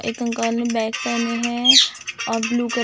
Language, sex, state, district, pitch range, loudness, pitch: Hindi, female, Maharashtra, Gondia, 230-240 Hz, -18 LUFS, 235 Hz